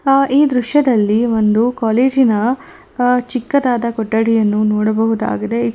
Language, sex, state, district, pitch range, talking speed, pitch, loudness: Kannada, female, Karnataka, Bangalore, 215-255 Hz, 105 wpm, 235 Hz, -15 LUFS